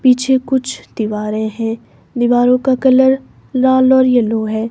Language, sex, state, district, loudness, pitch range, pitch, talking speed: Hindi, female, Himachal Pradesh, Shimla, -14 LUFS, 225-260 Hz, 250 Hz, 140 wpm